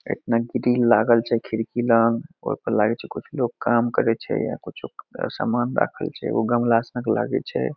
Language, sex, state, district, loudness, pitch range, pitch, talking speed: Maithili, male, Bihar, Madhepura, -22 LUFS, 115-120 Hz, 115 Hz, 155 wpm